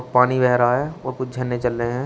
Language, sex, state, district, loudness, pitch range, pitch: Hindi, male, Uttar Pradesh, Shamli, -20 LUFS, 120-130 Hz, 125 Hz